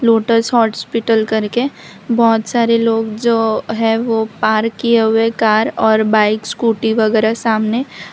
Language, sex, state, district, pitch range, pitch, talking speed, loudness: Hindi, female, Gujarat, Valsad, 220-230 Hz, 225 Hz, 140 wpm, -15 LUFS